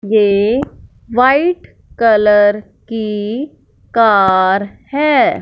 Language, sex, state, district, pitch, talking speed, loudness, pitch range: Hindi, female, Punjab, Fazilka, 220 Hz, 65 wpm, -13 LUFS, 205-265 Hz